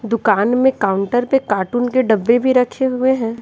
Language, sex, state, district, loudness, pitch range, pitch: Hindi, female, Bihar, West Champaran, -16 LUFS, 220-255 Hz, 245 Hz